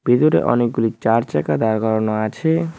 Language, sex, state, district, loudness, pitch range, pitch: Bengali, male, West Bengal, Cooch Behar, -18 LUFS, 110-125 Hz, 115 Hz